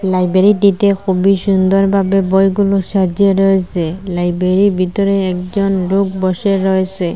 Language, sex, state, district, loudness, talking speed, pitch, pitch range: Bengali, female, Assam, Hailakandi, -14 LUFS, 100 wpm, 195 Hz, 185-195 Hz